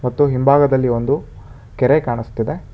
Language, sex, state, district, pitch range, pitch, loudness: Kannada, male, Karnataka, Bangalore, 115-140 Hz, 125 Hz, -17 LUFS